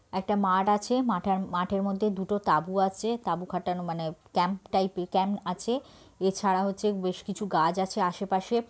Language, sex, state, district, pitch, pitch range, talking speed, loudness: Bengali, female, West Bengal, Purulia, 190 Hz, 180-205 Hz, 180 wpm, -28 LUFS